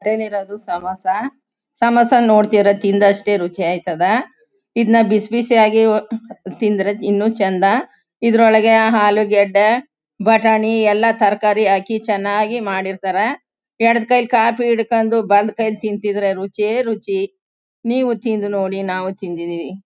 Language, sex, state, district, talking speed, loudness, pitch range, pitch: Kannada, female, Karnataka, Chamarajanagar, 110 wpm, -16 LUFS, 200-230 Hz, 215 Hz